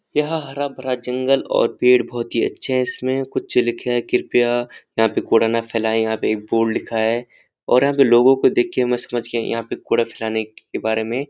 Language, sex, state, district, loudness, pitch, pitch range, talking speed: Hindi, male, Uttarakhand, Uttarkashi, -19 LUFS, 120 Hz, 115-130 Hz, 215 wpm